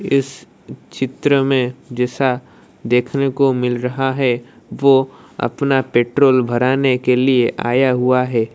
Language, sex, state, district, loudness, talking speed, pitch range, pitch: Hindi, female, Odisha, Malkangiri, -17 LUFS, 125 wpm, 125-135 Hz, 130 Hz